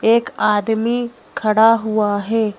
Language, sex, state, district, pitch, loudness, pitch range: Hindi, female, Madhya Pradesh, Bhopal, 220 Hz, -17 LUFS, 210-230 Hz